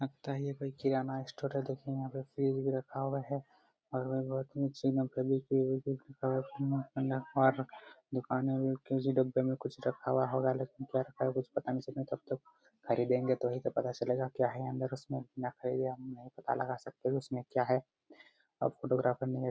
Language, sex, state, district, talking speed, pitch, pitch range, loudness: Hindi, female, Jharkhand, Jamtara, 190 wpm, 130 Hz, 130-135 Hz, -35 LUFS